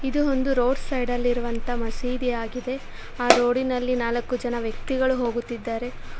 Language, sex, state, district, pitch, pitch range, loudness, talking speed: Kannada, female, Karnataka, Bangalore, 245 Hz, 235-260 Hz, -25 LUFS, 135 wpm